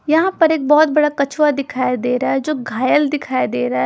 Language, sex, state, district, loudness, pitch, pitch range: Hindi, female, Punjab, Pathankot, -16 LUFS, 285 Hz, 255-300 Hz